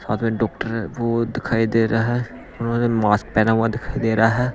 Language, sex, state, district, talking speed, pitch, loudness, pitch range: Hindi, male, Punjab, Pathankot, 210 wpm, 115 Hz, -20 LUFS, 110-115 Hz